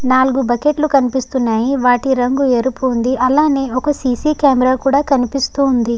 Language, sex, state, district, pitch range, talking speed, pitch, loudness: Telugu, female, Andhra Pradesh, Guntur, 250-275 Hz, 160 wpm, 260 Hz, -15 LUFS